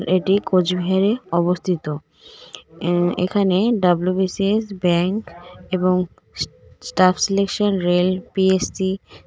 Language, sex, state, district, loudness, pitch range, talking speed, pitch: Bengali, female, West Bengal, Cooch Behar, -20 LUFS, 180-195 Hz, 90 wpm, 185 Hz